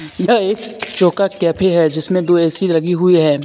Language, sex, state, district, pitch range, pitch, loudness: Hindi, male, Jharkhand, Deoghar, 165-195 Hz, 180 Hz, -15 LUFS